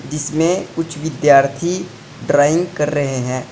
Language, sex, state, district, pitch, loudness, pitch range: Hindi, male, Uttar Pradesh, Saharanpur, 150 Hz, -17 LUFS, 140-165 Hz